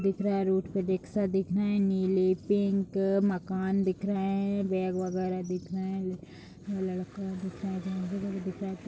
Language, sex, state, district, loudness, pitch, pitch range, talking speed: Hindi, female, Uttar Pradesh, Jalaun, -30 LUFS, 190 Hz, 185-195 Hz, 190 wpm